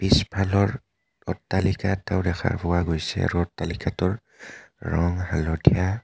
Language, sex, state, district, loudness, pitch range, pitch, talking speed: Assamese, male, Assam, Kamrup Metropolitan, -24 LUFS, 85-100 Hz, 95 Hz, 100 wpm